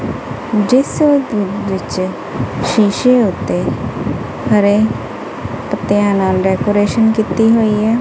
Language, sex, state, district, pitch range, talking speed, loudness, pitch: Punjabi, female, Punjab, Kapurthala, 200-225 Hz, 90 wpm, -15 LUFS, 210 Hz